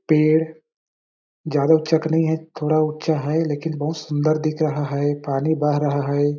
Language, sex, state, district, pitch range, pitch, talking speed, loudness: Hindi, male, Chhattisgarh, Balrampur, 145-160 Hz, 155 Hz, 190 wpm, -21 LUFS